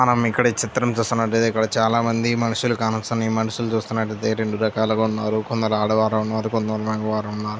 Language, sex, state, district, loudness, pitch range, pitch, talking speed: Telugu, male, Andhra Pradesh, Krishna, -21 LUFS, 110-115 Hz, 110 Hz, 175 wpm